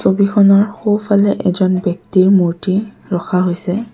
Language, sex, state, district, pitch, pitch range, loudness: Assamese, female, Assam, Kamrup Metropolitan, 195 Hz, 185-205 Hz, -14 LUFS